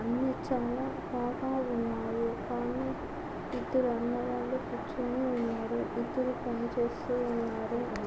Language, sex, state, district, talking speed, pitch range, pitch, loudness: Telugu, female, Andhra Pradesh, Anantapur, 110 wpm, 235-255 Hz, 245 Hz, -33 LUFS